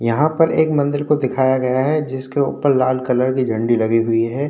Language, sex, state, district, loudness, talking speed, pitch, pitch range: Hindi, male, Uttar Pradesh, Hamirpur, -17 LUFS, 225 wpm, 130 Hz, 125-145 Hz